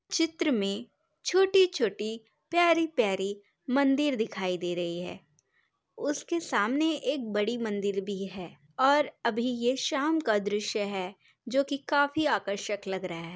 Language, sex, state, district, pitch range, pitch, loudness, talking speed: Hindi, female, Uttar Pradesh, Hamirpur, 200-290 Hz, 230 Hz, -29 LUFS, 145 wpm